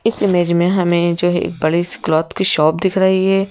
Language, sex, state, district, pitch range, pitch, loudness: Hindi, female, Madhya Pradesh, Bhopal, 170-190 Hz, 175 Hz, -15 LUFS